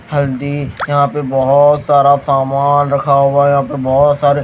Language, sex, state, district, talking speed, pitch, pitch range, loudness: Hindi, male, Himachal Pradesh, Shimla, 190 wpm, 140 Hz, 140-145 Hz, -12 LUFS